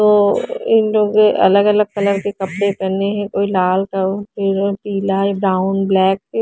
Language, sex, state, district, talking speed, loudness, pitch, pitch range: Hindi, female, Haryana, Charkhi Dadri, 170 wpm, -16 LUFS, 200 Hz, 195-210 Hz